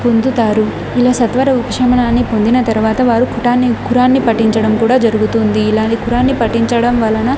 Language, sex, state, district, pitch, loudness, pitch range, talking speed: Telugu, female, Andhra Pradesh, Annamaya, 235 Hz, -13 LUFS, 225-250 Hz, 130 wpm